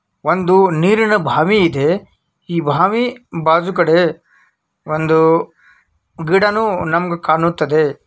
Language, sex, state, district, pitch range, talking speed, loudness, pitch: Kannada, male, Karnataka, Belgaum, 155-190 Hz, 80 wpm, -15 LUFS, 170 Hz